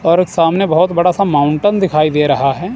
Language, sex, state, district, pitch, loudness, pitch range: Hindi, male, Punjab, Kapurthala, 170 Hz, -13 LUFS, 150-190 Hz